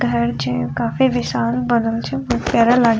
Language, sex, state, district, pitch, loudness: Maithili, female, Bihar, Sitamarhi, 225 Hz, -18 LUFS